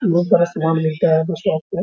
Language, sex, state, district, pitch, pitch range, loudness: Hindi, male, Bihar, Araria, 170 Hz, 160-175 Hz, -18 LUFS